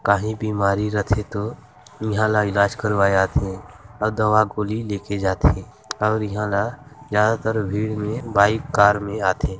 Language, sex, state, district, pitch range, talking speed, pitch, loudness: Hindi, male, Chhattisgarh, Balrampur, 100-110 Hz, 150 wpm, 105 Hz, -21 LUFS